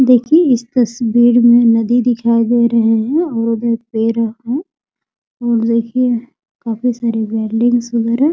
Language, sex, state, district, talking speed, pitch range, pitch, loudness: Hindi, male, Bihar, Muzaffarpur, 135 wpm, 230-245 Hz, 235 Hz, -14 LUFS